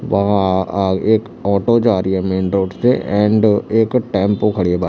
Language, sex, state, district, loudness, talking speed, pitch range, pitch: Hindi, male, Chhattisgarh, Raipur, -16 LUFS, 195 wpm, 95-110 Hz, 100 Hz